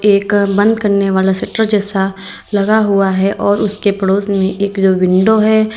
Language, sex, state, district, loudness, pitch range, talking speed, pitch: Hindi, female, Uttar Pradesh, Lalitpur, -13 LUFS, 195-210 Hz, 165 wpm, 200 Hz